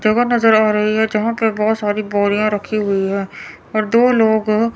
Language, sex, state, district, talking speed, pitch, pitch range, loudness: Hindi, female, Chandigarh, Chandigarh, 200 wpm, 215 Hz, 210-225 Hz, -16 LUFS